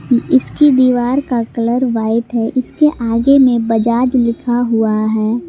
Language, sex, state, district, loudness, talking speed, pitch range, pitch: Hindi, female, Jharkhand, Palamu, -14 LUFS, 140 wpm, 230-255 Hz, 240 Hz